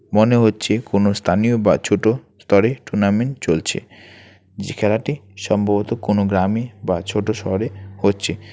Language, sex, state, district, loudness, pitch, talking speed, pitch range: Bengali, male, West Bengal, Alipurduar, -19 LUFS, 105 Hz, 125 wpm, 100-110 Hz